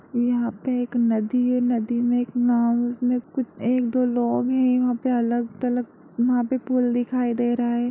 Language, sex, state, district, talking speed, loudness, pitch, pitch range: Hindi, female, Bihar, Darbhanga, 190 wpm, -23 LUFS, 245 Hz, 240-250 Hz